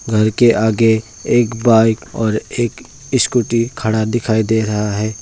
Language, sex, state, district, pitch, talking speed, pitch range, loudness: Hindi, male, West Bengal, Alipurduar, 110 Hz, 150 wpm, 110-115 Hz, -16 LUFS